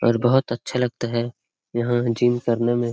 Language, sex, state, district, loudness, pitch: Hindi, male, Bihar, Lakhisarai, -22 LUFS, 120 Hz